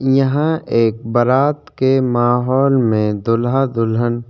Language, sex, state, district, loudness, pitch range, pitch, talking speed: Hindi, male, Chhattisgarh, Korba, -16 LUFS, 115-135 Hz, 125 Hz, 110 wpm